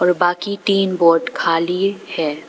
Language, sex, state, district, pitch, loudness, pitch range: Hindi, female, Arunachal Pradesh, Papum Pare, 180 Hz, -17 LUFS, 165-195 Hz